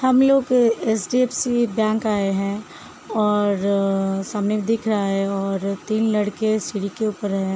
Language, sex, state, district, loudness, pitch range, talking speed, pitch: Hindi, female, Uttar Pradesh, Hamirpur, -21 LUFS, 200-225 Hz, 135 wpm, 210 Hz